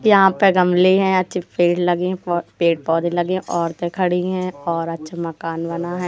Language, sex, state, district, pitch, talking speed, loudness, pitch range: Hindi, female, Madhya Pradesh, Katni, 175 Hz, 185 wpm, -19 LUFS, 170-185 Hz